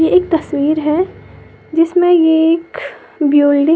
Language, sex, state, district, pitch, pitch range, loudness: Hindi, female, Uttar Pradesh, Lalitpur, 325 Hz, 300-335 Hz, -13 LUFS